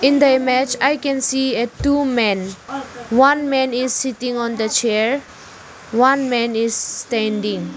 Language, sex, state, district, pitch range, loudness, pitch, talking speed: English, female, Arunachal Pradesh, Lower Dibang Valley, 230-270 Hz, -18 LUFS, 255 Hz, 155 wpm